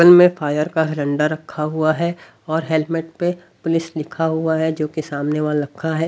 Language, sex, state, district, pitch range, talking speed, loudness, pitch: Hindi, male, Haryana, Rohtak, 150-165 Hz, 195 wpm, -20 LUFS, 160 Hz